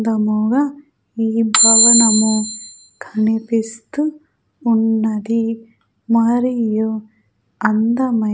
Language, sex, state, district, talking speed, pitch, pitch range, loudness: Telugu, female, Andhra Pradesh, Sri Satya Sai, 50 wpm, 225 Hz, 220-230 Hz, -14 LUFS